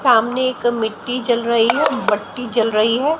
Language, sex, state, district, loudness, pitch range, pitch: Hindi, female, Haryana, Jhajjar, -18 LUFS, 230-255 Hz, 240 Hz